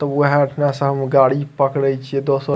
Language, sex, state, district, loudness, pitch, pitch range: Maithili, male, Bihar, Madhepura, -17 LUFS, 140 Hz, 135-145 Hz